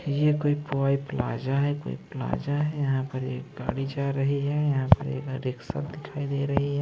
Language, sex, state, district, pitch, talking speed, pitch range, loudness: Hindi, male, Maharashtra, Mumbai Suburban, 140 Hz, 195 wpm, 130-145 Hz, -27 LUFS